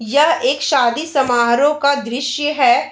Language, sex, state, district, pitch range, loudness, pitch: Hindi, female, Bihar, Darbhanga, 245-300 Hz, -15 LUFS, 280 Hz